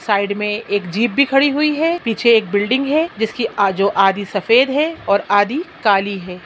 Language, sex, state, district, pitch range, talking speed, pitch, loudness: Hindi, female, Bihar, Sitamarhi, 200-275 Hz, 195 wpm, 220 Hz, -16 LUFS